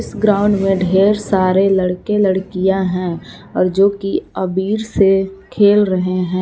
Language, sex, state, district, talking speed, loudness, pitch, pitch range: Hindi, female, Jharkhand, Palamu, 150 wpm, -15 LUFS, 195 Hz, 185-205 Hz